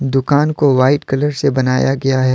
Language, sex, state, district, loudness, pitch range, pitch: Hindi, male, Jharkhand, Deoghar, -14 LUFS, 130-145 Hz, 135 Hz